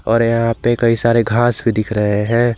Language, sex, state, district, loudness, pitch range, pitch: Hindi, male, Jharkhand, Garhwa, -15 LUFS, 110-120 Hz, 115 Hz